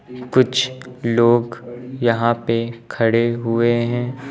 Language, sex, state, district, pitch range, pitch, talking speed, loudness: Hindi, male, Uttar Pradesh, Lucknow, 115-125 Hz, 120 Hz, 100 wpm, -19 LUFS